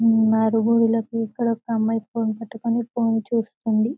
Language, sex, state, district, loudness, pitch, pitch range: Telugu, female, Telangana, Karimnagar, -22 LUFS, 225 Hz, 220-230 Hz